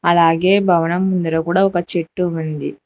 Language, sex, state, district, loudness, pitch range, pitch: Telugu, female, Telangana, Hyderabad, -17 LUFS, 165-180 Hz, 170 Hz